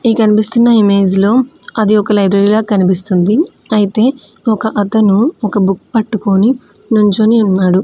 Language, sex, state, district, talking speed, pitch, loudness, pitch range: Telugu, female, Andhra Pradesh, Manyam, 130 wpm, 215 Hz, -12 LUFS, 200-225 Hz